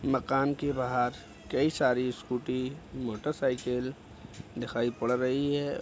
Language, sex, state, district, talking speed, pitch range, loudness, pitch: Hindi, male, Bihar, Araria, 115 wpm, 120-140 Hz, -31 LUFS, 125 Hz